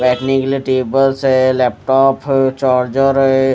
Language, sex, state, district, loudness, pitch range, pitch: Hindi, male, Odisha, Malkangiri, -14 LUFS, 130-135 Hz, 135 Hz